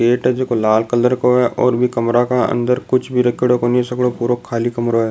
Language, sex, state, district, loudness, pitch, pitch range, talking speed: Rajasthani, male, Rajasthan, Nagaur, -16 LUFS, 125 Hz, 120-125 Hz, 245 wpm